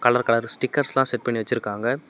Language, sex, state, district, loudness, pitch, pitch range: Tamil, male, Tamil Nadu, Namakkal, -23 LUFS, 120 Hz, 115-130 Hz